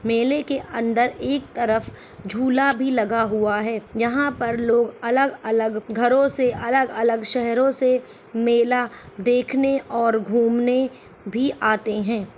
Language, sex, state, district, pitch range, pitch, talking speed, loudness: Hindi, male, Chhattisgarh, Bilaspur, 225-255 Hz, 235 Hz, 145 wpm, -21 LUFS